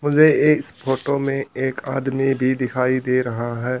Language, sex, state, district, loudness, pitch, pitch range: Hindi, male, Haryana, Rohtak, -20 LUFS, 130 Hz, 125-135 Hz